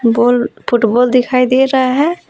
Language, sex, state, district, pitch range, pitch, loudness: Hindi, female, Jharkhand, Palamu, 240-260 Hz, 250 Hz, -12 LUFS